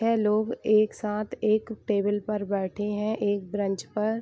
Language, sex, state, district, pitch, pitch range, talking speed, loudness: Hindi, female, Bihar, Vaishali, 210 Hz, 205-215 Hz, 185 wpm, -27 LUFS